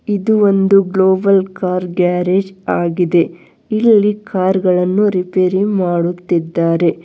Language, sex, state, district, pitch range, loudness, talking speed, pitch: Kannada, female, Karnataka, Bangalore, 180-200 Hz, -14 LUFS, 95 wpm, 185 Hz